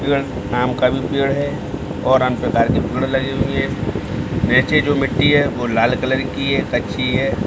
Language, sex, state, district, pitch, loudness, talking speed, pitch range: Hindi, male, Bihar, Samastipur, 130 Hz, -18 LUFS, 185 wpm, 125-140 Hz